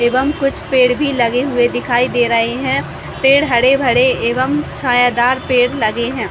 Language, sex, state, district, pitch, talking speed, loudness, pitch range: Hindi, female, Chhattisgarh, Raigarh, 250 Hz, 160 wpm, -14 LUFS, 240-265 Hz